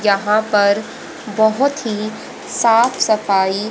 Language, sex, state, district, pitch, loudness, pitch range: Hindi, female, Haryana, Jhajjar, 215 Hz, -16 LUFS, 205-230 Hz